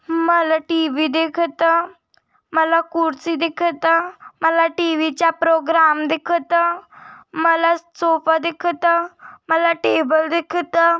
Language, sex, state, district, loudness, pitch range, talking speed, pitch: Marathi, male, Maharashtra, Dhule, -18 LUFS, 325-340 Hz, 95 wpm, 330 Hz